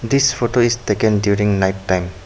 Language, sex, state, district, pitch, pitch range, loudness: English, male, Arunachal Pradesh, Papum Pare, 105 Hz, 95-120 Hz, -17 LUFS